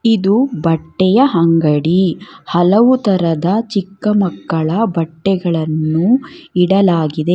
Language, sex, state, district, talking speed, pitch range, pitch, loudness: Kannada, female, Karnataka, Bangalore, 75 wpm, 165-210 Hz, 180 Hz, -14 LUFS